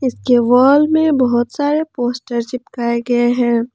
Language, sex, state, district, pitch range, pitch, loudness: Hindi, male, Jharkhand, Ranchi, 240-275 Hz, 245 Hz, -15 LUFS